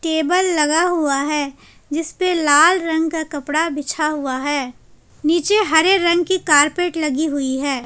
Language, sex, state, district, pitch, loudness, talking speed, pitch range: Hindi, female, Jharkhand, Palamu, 315 Hz, -17 LUFS, 160 wpm, 290-340 Hz